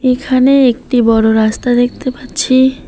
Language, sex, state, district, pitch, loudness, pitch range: Bengali, female, West Bengal, Alipurduar, 250 Hz, -12 LUFS, 240-260 Hz